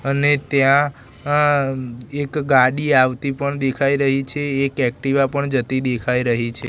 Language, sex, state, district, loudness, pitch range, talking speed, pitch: Gujarati, male, Gujarat, Gandhinagar, -19 LUFS, 130-140 Hz, 150 wpm, 135 Hz